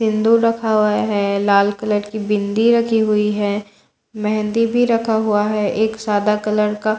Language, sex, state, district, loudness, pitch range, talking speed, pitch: Hindi, female, Bihar, Katihar, -17 LUFS, 210-220 Hz, 180 wpm, 215 Hz